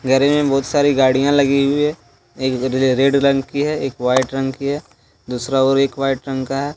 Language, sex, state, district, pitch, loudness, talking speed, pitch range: Hindi, male, Jharkhand, Deoghar, 135 Hz, -17 LUFS, 230 wpm, 130-140 Hz